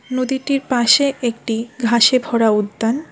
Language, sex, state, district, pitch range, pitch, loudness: Bengali, female, West Bengal, Alipurduar, 230-265 Hz, 240 Hz, -17 LUFS